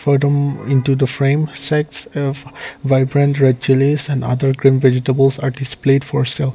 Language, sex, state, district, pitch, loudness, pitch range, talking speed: English, male, Nagaland, Kohima, 135 Hz, -16 LUFS, 135-145 Hz, 145 wpm